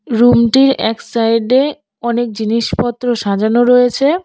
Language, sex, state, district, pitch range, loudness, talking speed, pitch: Bengali, female, West Bengal, Alipurduar, 225-250 Hz, -13 LUFS, 100 wpm, 240 Hz